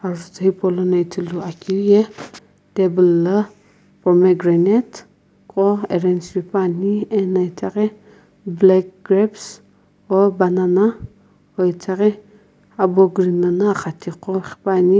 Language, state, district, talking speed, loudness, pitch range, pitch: Sumi, Nagaland, Kohima, 95 wpm, -18 LUFS, 180-205 Hz, 190 Hz